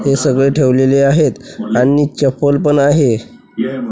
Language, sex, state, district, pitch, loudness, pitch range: Marathi, male, Maharashtra, Washim, 140 Hz, -13 LUFS, 130-145 Hz